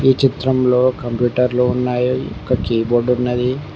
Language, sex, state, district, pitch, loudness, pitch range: Telugu, male, Telangana, Mahabubabad, 125 Hz, -17 LUFS, 120-130 Hz